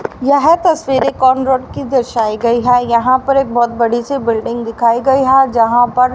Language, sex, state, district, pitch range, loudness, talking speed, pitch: Hindi, female, Haryana, Rohtak, 235-270 Hz, -13 LUFS, 215 wpm, 250 Hz